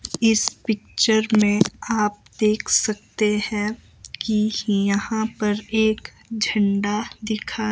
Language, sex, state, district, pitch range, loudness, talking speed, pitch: Hindi, male, Himachal Pradesh, Shimla, 210-220 Hz, -22 LUFS, 100 wpm, 215 Hz